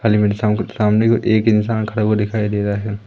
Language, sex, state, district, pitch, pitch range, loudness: Hindi, male, Madhya Pradesh, Umaria, 105 Hz, 105-110 Hz, -17 LUFS